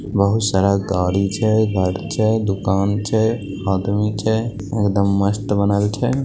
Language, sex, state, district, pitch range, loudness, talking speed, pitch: Maithili, male, Bihar, Begusarai, 100-110 Hz, -19 LUFS, 135 wpm, 100 Hz